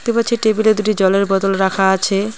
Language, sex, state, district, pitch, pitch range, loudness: Bengali, female, West Bengal, Cooch Behar, 200 Hz, 195-220 Hz, -15 LUFS